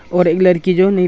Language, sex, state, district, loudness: Hindi, male, Arunachal Pradesh, Longding, -13 LUFS